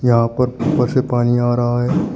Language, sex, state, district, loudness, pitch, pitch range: Hindi, male, Uttar Pradesh, Shamli, -17 LUFS, 120 Hz, 120-125 Hz